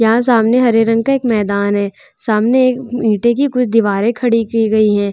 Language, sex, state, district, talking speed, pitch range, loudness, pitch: Hindi, female, Bihar, Vaishali, 210 wpm, 215-245 Hz, -14 LUFS, 230 Hz